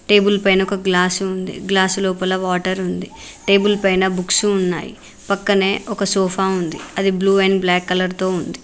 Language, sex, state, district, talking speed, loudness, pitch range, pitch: Telugu, female, Telangana, Mahabubabad, 165 wpm, -17 LUFS, 185-195 Hz, 190 Hz